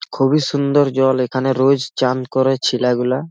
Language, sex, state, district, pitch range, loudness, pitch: Bengali, male, West Bengal, Malda, 130-140 Hz, -17 LUFS, 130 Hz